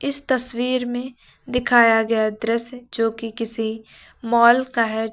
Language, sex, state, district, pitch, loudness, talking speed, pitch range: Hindi, female, Uttar Pradesh, Lucknow, 235 Hz, -20 LUFS, 130 wpm, 225-250 Hz